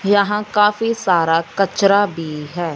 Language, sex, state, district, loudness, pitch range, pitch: Hindi, male, Punjab, Fazilka, -17 LUFS, 165-210 Hz, 195 Hz